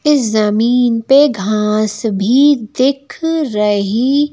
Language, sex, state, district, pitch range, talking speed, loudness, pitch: Hindi, female, Madhya Pradesh, Bhopal, 215-280 Hz, 110 wpm, -13 LUFS, 240 Hz